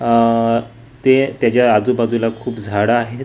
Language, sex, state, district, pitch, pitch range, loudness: Marathi, male, Maharashtra, Gondia, 115 Hz, 115-125 Hz, -16 LUFS